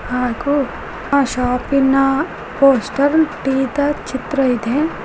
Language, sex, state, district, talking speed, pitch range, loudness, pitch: Kannada, female, Karnataka, Koppal, 105 wpm, 255-285 Hz, -17 LUFS, 275 Hz